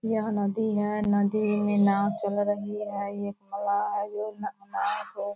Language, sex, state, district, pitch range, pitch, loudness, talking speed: Hindi, female, Bihar, Purnia, 200-210 Hz, 205 Hz, -28 LUFS, 145 wpm